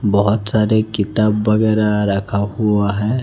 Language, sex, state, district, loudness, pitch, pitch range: Hindi, male, Chhattisgarh, Raipur, -16 LUFS, 105 Hz, 100-110 Hz